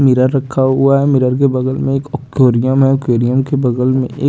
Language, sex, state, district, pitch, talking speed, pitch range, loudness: Hindi, male, Chandigarh, Chandigarh, 130 Hz, 240 wpm, 130-135 Hz, -13 LUFS